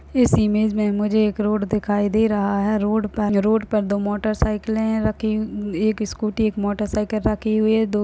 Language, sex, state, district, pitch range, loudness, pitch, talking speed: Hindi, female, Uttar Pradesh, Budaun, 210-215 Hz, -21 LUFS, 215 Hz, 195 wpm